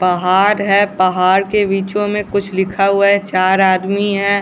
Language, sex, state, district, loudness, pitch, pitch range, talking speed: Hindi, male, Bihar, West Champaran, -14 LUFS, 195 Hz, 190-200 Hz, 175 wpm